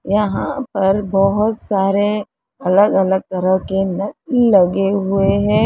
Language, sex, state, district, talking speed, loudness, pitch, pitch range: Hindi, female, Uttar Pradesh, Lalitpur, 140 wpm, -16 LUFS, 200 Hz, 195-210 Hz